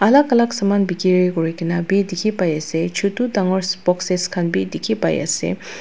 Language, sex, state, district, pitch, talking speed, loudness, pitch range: Nagamese, female, Nagaland, Dimapur, 185 Hz, 185 wpm, -19 LUFS, 175-200 Hz